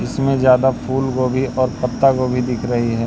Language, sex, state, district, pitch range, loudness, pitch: Hindi, male, Madhya Pradesh, Katni, 125-130 Hz, -17 LUFS, 130 Hz